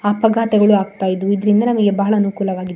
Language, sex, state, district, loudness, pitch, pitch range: Kannada, female, Karnataka, Shimoga, -16 LUFS, 205 Hz, 195-210 Hz